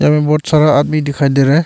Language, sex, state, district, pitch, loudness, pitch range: Hindi, male, Arunachal Pradesh, Longding, 150 Hz, -12 LUFS, 145-155 Hz